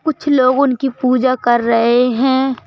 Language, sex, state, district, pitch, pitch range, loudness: Hindi, male, Madhya Pradesh, Bhopal, 255 Hz, 245-270 Hz, -14 LUFS